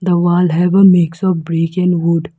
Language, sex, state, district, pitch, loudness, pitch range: English, female, Arunachal Pradesh, Lower Dibang Valley, 175 Hz, -13 LUFS, 165-180 Hz